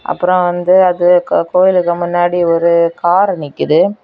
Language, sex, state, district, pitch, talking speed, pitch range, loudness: Tamil, female, Tamil Nadu, Kanyakumari, 175 Hz, 120 wpm, 175-180 Hz, -12 LUFS